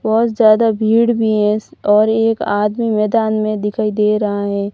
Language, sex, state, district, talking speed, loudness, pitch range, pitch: Hindi, female, Rajasthan, Barmer, 180 wpm, -15 LUFS, 210-225 Hz, 215 Hz